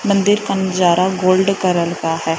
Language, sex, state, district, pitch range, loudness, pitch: Hindi, male, Punjab, Fazilka, 170-195 Hz, -16 LUFS, 185 Hz